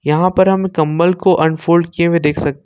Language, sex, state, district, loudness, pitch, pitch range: Hindi, male, Jharkhand, Ranchi, -14 LUFS, 170 Hz, 155-185 Hz